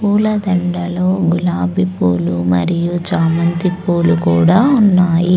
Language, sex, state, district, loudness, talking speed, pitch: Telugu, female, Andhra Pradesh, Sri Satya Sai, -14 LUFS, 100 wpm, 175 Hz